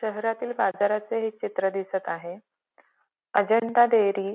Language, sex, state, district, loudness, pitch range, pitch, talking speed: Marathi, female, Maharashtra, Pune, -25 LUFS, 195-225 Hz, 210 Hz, 125 wpm